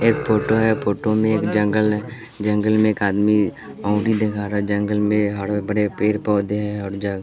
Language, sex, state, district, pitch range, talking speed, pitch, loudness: Hindi, male, Bihar, West Champaran, 105-110 Hz, 205 wpm, 105 Hz, -20 LUFS